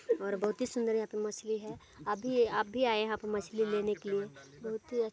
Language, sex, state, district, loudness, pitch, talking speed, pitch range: Hindi, female, Chhattisgarh, Balrampur, -34 LUFS, 215 Hz, 255 wpm, 210-230 Hz